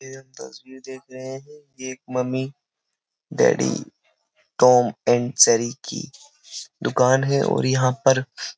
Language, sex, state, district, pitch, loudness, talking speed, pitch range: Hindi, male, Uttar Pradesh, Jyotiba Phule Nagar, 130 Hz, -20 LUFS, 100 wpm, 125-135 Hz